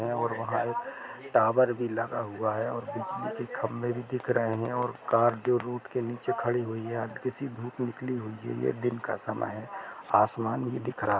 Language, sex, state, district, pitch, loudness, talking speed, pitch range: Hindi, male, Jharkhand, Jamtara, 120 Hz, -30 LUFS, 210 wpm, 115-125 Hz